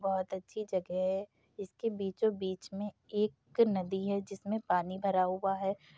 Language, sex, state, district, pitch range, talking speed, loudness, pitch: Hindi, female, Uttar Pradesh, Jalaun, 185-205 Hz, 160 wpm, -34 LUFS, 195 Hz